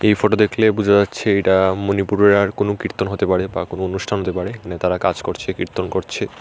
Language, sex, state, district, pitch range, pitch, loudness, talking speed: Bengali, male, Tripura, Unakoti, 95-105 Hz, 100 Hz, -18 LUFS, 215 wpm